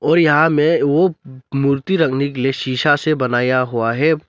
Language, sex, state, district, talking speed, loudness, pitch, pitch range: Hindi, male, Arunachal Pradesh, Lower Dibang Valley, 180 wpm, -16 LUFS, 140 Hz, 130-160 Hz